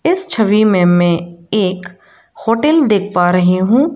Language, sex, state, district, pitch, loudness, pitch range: Hindi, female, Arunachal Pradesh, Lower Dibang Valley, 205 Hz, -13 LUFS, 180-235 Hz